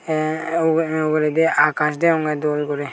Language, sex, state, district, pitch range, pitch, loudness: Chakma, male, Tripura, Dhalai, 150-160 Hz, 155 Hz, -19 LUFS